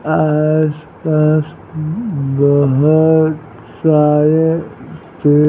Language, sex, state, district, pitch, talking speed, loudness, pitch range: Hindi, male, Bihar, Patna, 155 Hz, 55 wpm, -14 LUFS, 150-155 Hz